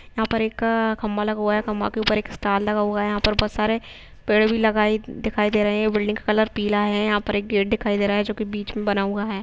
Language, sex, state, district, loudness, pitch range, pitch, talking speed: Hindi, female, Jharkhand, Sahebganj, -22 LUFS, 210-220 Hz, 210 Hz, 280 wpm